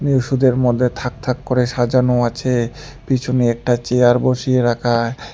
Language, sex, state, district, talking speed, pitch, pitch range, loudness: Bengali, male, West Bengal, Alipurduar, 135 wpm, 125 Hz, 120-130 Hz, -17 LUFS